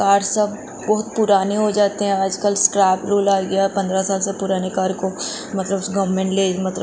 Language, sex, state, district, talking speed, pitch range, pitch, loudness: Hindi, female, Goa, North and South Goa, 200 wpm, 190-200 Hz, 195 Hz, -19 LUFS